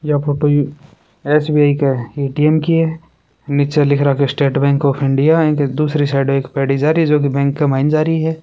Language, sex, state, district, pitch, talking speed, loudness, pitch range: Hindi, male, Rajasthan, Churu, 145 Hz, 215 wpm, -15 LUFS, 140-150 Hz